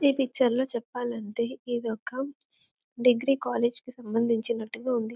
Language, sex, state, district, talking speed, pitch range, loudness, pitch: Telugu, female, Telangana, Karimnagar, 105 wpm, 235-255 Hz, -28 LUFS, 240 Hz